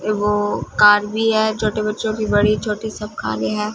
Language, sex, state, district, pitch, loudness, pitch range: Hindi, female, Punjab, Fazilka, 210 Hz, -18 LUFS, 210-215 Hz